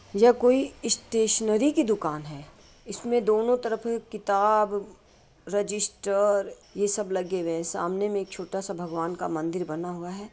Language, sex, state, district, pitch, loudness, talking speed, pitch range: Hindi, female, Bihar, Madhepura, 205 Hz, -26 LUFS, 150 wpm, 180-220 Hz